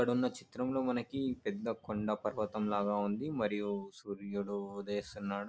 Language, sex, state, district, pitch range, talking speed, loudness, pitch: Telugu, male, Andhra Pradesh, Anantapur, 100-120 Hz, 130 wpm, -37 LUFS, 105 Hz